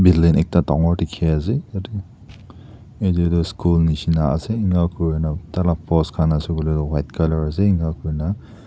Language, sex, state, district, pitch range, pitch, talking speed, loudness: Nagamese, male, Nagaland, Dimapur, 80-100 Hz, 85 Hz, 195 wpm, -20 LUFS